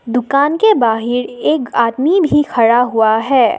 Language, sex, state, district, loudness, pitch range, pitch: Hindi, female, Assam, Sonitpur, -13 LUFS, 230-295 Hz, 245 Hz